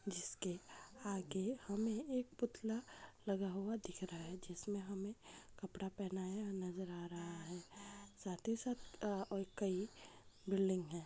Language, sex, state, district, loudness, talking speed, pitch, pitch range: Hindi, female, Rajasthan, Nagaur, -45 LUFS, 135 wpm, 195 Hz, 180-220 Hz